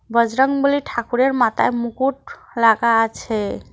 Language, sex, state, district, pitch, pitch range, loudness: Bengali, female, West Bengal, Cooch Behar, 235 Hz, 230-265 Hz, -18 LUFS